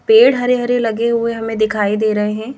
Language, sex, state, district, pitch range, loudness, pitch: Hindi, female, Madhya Pradesh, Bhopal, 215-245 Hz, -15 LUFS, 230 Hz